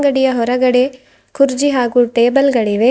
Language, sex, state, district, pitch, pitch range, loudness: Kannada, female, Karnataka, Bidar, 255 Hz, 245-275 Hz, -14 LUFS